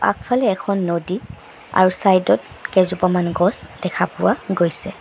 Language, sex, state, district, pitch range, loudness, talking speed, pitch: Assamese, male, Assam, Sonitpur, 180-195 Hz, -19 LUFS, 130 wpm, 185 Hz